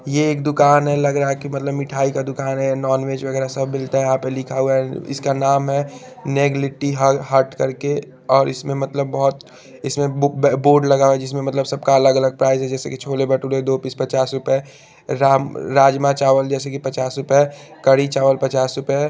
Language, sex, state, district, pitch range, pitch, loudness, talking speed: Hindi, male, Chandigarh, Chandigarh, 135-140 Hz, 135 Hz, -18 LUFS, 210 wpm